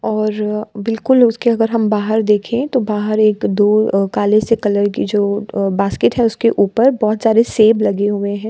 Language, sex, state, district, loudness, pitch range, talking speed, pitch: Hindi, female, Bihar, Kishanganj, -15 LUFS, 205-225 Hz, 185 wpm, 215 Hz